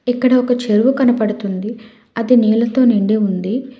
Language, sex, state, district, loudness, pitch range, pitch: Telugu, female, Telangana, Hyderabad, -15 LUFS, 215-250 Hz, 230 Hz